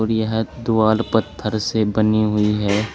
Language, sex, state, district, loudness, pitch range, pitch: Hindi, male, Uttar Pradesh, Saharanpur, -19 LUFS, 105-110 Hz, 110 Hz